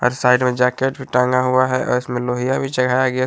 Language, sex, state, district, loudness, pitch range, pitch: Hindi, male, Jharkhand, Palamu, -18 LUFS, 125-130 Hz, 125 Hz